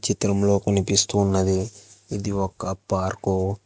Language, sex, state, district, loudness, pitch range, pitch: Telugu, male, Telangana, Hyderabad, -23 LUFS, 95-100 Hz, 100 Hz